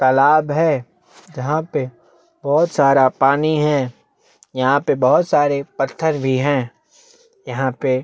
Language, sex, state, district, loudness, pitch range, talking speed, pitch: Hindi, male, Chhattisgarh, Bastar, -17 LUFS, 130-155 Hz, 125 wpm, 140 Hz